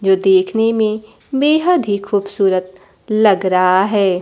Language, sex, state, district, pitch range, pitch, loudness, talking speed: Hindi, female, Bihar, Kaimur, 190-220 Hz, 200 Hz, -15 LUFS, 130 wpm